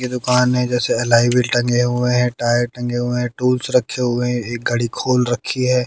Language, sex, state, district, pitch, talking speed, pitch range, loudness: Hindi, male, Haryana, Jhajjar, 125 Hz, 215 wpm, 120-125 Hz, -18 LUFS